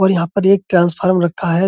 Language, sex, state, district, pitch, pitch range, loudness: Hindi, male, Uttar Pradesh, Budaun, 185 Hz, 175-195 Hz, -15 LUFS